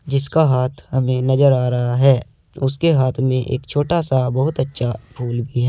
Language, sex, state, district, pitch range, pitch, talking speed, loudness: Hindi, male, Uttar Pradesh, Saharanpur, 125-140 Hz, 130 Hz, 190 wpm, -18 LUFS